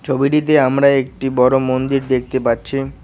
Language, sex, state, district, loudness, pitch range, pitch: Bengali, male, West Bengal, Cooch Behar, -16 LUFS, 130-135 Hz, 135 Hz